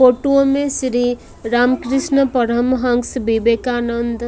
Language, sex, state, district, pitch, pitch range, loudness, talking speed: Hindi, female, Odisha, Malkangiri, 245 Hz, 240-270 Hz, -17 LUFS, 110 wpm